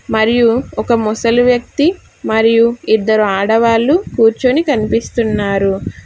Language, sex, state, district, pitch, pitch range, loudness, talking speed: Telugu, female, Telangana, Hyderabad, 230 Hz, 220-240 Hz, -13 LUFS, 90 wpm